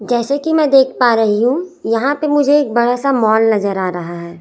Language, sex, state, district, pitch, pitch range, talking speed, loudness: Hindi, female, Chhattisgarh, Raipur, 240 Hz, 220-285 Hz, 230 wpm, -14 LUFS